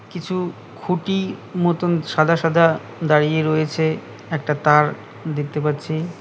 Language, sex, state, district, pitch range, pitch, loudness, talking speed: Bengali, male, West Bengal, Cooch Behar, 150-175 Hz, 160 Hz, -20 LUFS, 105 wpm